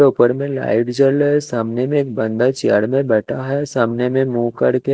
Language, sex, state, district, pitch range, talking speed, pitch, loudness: Hindi, male, Chandigarh, Chandigarh, 120-140 Hz, 230 wpm, 130 Hz, -17 LUFS